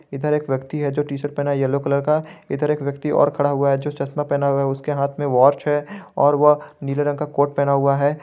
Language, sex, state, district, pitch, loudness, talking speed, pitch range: Hindi, male, Jharkhand, Garhwa, 145 Hz, -20 LUFS, 260 wpm, 140-150 Hz